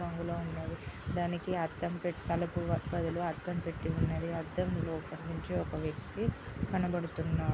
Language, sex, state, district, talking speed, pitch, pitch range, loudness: Telugu, female, Andhra Pradesh, Guntur, 120 wpm, 170 Hz, 165-175 Hz, -36 LUFS